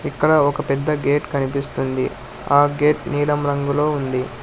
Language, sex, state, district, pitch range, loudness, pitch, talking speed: Telugu, male, Telangana, Hyderabad, 140-150 Hz, -19 LUFS, 145 Hz, 135 wpm